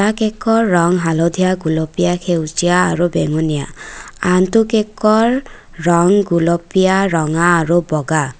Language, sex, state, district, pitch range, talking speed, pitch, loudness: Assamese, female, Assam, Kamrup Metropolitan, 165-195 Hz, 100 wpm, 175 Hz, -15 LUFS